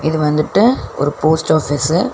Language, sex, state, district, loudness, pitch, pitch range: Tamil, female, Tamil Nadu, Chennai, -15 LUFS, 155 Hz, 150-165 Hz